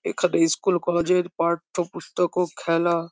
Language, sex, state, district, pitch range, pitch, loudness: Bengali, female, West Bengal, Jhargram, 170-180 Hz, 175 Hz, -23 LUFS